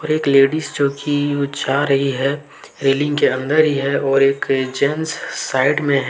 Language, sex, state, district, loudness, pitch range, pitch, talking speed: Hindi, male, Jharkhand, Deoghar, -17 LUFS, 135-145 Hz, 140 Hz, 175 wpm